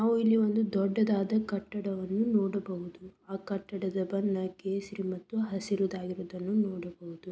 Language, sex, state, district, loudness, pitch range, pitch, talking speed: Kannada, female, Karnataka, Belgaum, -31 LUFS, 185-210 Hz, 195 Hz, 105 wpm